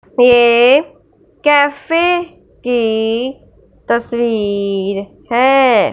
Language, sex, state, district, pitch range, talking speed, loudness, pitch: Hindi, male, Punjab, Fazilka, 225-285 Hz, 50 wpm, -13 LUFS, 245 Hz